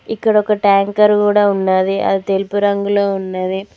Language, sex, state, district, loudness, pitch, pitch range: Telugu, female, Telangana, Mahabubabad, -15 LUFS, 200 Hz, 195-205 Hz